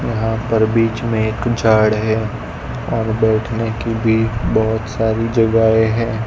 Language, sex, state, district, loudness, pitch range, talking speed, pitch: Hindi, male, Gujarat, Gandhinagar, -17 LUFS, 110-115 Hz, 145 wpm, 110 Hz